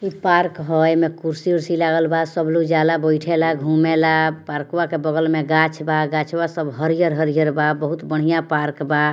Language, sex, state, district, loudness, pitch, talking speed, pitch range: Bhojpuri, female, Bihar, Muzaffarpur, -19 LUFS, 160 Hz, 175 wpm, 155-165 Hz